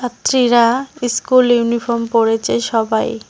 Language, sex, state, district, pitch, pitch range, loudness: Bengali, female, West Bengal, Cooch Behar, 235 Hz, 230-250 Hz, -15 LUFS